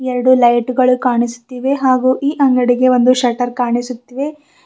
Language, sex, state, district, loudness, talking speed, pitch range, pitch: Kannada, female, Karnataka, Bidar, -14 LUFS, 130 wpm, 245-260 Hz, 255 Hz